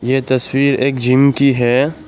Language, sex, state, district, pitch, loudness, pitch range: Hindi, male, Assam, Kamrup Metropolitan, 135 Hz, -14 LUFS, 125-140 Hz